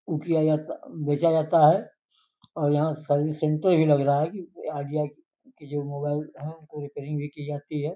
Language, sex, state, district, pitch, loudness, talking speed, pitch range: Hindi, male, Uttar Pradesh, Gorakhpur, 150 Hz, -25 LUFS, 195 wpm, 145-160 Hz